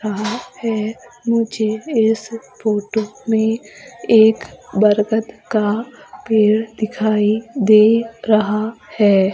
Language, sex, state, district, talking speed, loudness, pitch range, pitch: Hindi, female, Madhya Pradesh, Umaria, 90 wpm, -17 LUFS, 215-230 Hz, 220 Hz